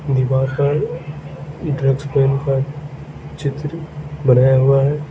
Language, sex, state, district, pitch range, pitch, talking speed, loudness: Hindi, male, Arunachal Pradesh, Lower Dibang Valley, 135-150 Hz, 140 Hz, 115 wpm, -17 LUFS